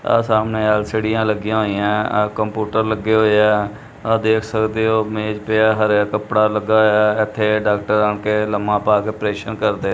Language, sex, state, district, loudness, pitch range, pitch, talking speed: Punjabi, male, Punjab, Kapurthala, -17 LUFS, 105-110 Hz, 110 Hz, 170 wpm